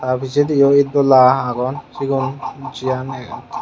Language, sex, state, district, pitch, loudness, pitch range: Chakma, male, Tripura, Unakoti, 130 Hz, -16 LUFS, 130-140 Hz